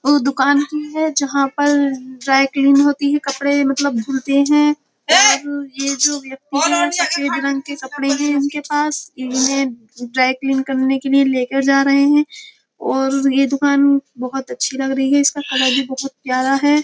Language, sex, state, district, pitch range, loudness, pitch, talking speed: Hindi, female, Uttar Pradesh, Jyotiba Phule Nagar, 270-290 Hz, -16 LUFS, 275 Hz, 175 wpm